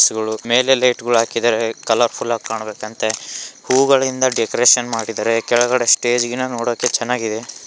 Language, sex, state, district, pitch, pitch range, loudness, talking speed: Kannada, male, Karnataka, Bellary, 120 Hz, 115-125 Hz, -17 LUFS, 125 wpm